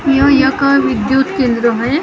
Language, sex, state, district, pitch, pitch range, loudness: Hindi, female, Maharashtra, Gondia, 270 Hz, 245-280 Hz, -12 LUFS